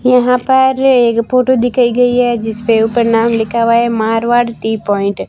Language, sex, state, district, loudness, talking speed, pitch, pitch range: Hindi, female, Rajasthan, Barmer, -12 LUFS, 205 wpm, 235 Hz, 225-250 Hz